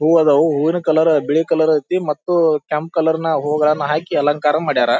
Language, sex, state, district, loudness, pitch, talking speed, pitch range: Kannada, male, Karnataka, Bijapur, -16 LUFS, 155 Hz, 180 wpm, 150-165 Hz